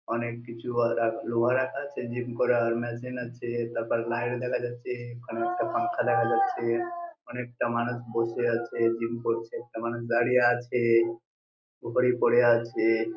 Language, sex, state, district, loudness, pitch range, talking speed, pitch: Bengali, male, West Bengal, Jhargram, -28 LUFS, 115-125 Hz, 145 wpm, 120 Hz